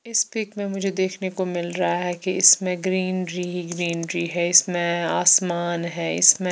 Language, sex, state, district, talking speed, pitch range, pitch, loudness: Hindi, female, Chandigarh, Chandigarh, 185 wpm, 175-185 Hz, 180 Hz, -21 LUFS